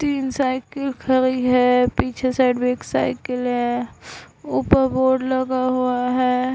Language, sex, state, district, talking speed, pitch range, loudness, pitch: Hindi, female, Bihar, Vaishali, 135 wpm, 250-260 Hz, -20 LUFS, 255 Hz